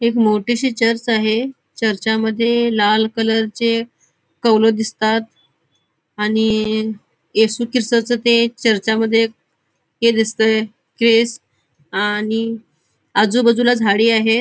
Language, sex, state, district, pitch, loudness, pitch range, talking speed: Marathi, female, Goa, North and South Goa, 225 Hz, -17 LUFS, 220-235 Hz, 90 wpm